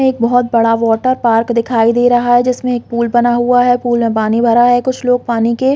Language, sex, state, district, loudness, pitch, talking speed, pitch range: Hindi, female, Chhattisgarh, Bilaspur, -12 LUFS, 240 Hz, 260 wpm, 230-245 Hz